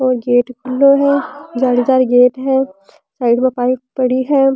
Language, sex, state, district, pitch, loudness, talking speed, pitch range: Rajasthani, female, Rajasthan, Churu, 255 Hz, -14 LUFS, 170 wpm, 245-265 Hz